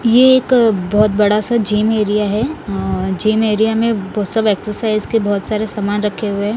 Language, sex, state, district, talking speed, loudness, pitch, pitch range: Hindi, male, Odisha, Nuapada, 190 wpm, -15 LUFS, 215 Hz, 205-220 Hz